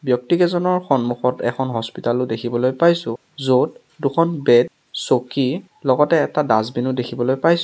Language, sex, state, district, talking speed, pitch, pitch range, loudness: Assamese, male, Assam, Sonitpur, 135 wpm, 130 Hz, 120-165 Hz, -19 LUFS